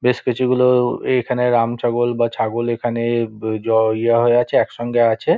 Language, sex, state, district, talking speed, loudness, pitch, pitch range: Bengali, male, West Bengal, Dakshin Dinajpur, 155 wpm, -18 LUFS, 120 Hz, 115-125 Hz